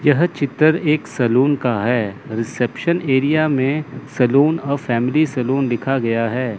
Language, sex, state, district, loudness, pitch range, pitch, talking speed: Hindi, male, Chandigarh, Chandigarh, -18 LUFS, 125-145 Hz, 135 Hz, 145 wpm